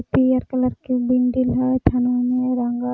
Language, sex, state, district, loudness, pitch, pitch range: Magahi, female, Jharkhand, Palamu, -20 LUFS, 250 Hz, 245-255 Hz